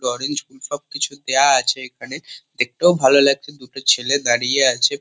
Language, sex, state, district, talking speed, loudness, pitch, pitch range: Bengali, male, West Bengal, Kolkata, 155 wpm, -17 LUFS, 140 Hz, 125-145 Hz